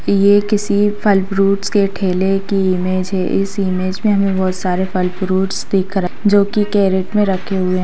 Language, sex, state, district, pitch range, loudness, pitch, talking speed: Hindi, female, Bihar, Saharsa, 185-200 Hz, -16 LUFS, 195 Hz, 205 wpm